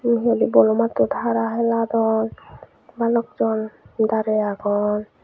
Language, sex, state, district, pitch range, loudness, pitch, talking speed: Chakma, female, Tripura, Unakoti, 205-230 Hz, -20 LUFS, 220 Hz, 105 wpm